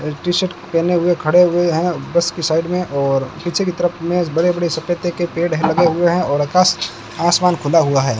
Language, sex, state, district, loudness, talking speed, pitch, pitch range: Hindi, male, Rajasthan, Bikaner, -17 LUFS, 225 wpm, 170 Hz, 160-175 Hz